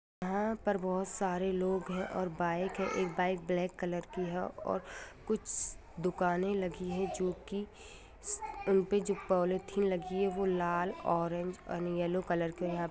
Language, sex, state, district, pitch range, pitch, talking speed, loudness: Hindi, female, Bihar, Saran, 180-195 Hz, 185 Hz, 170 wpm, -35 LUFS